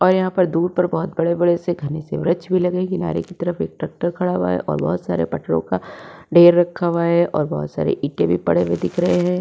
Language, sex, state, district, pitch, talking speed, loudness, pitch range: Hindi, female, Uttar Pradesh, Budaun, 170 Hz, 255 wpm, -19 LUFS, 145-180 Hz